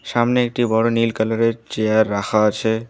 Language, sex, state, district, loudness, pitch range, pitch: Bengali, female, West Bengal, Alipurduar, -19 LUFS, 110-115 Hz, 110 Hz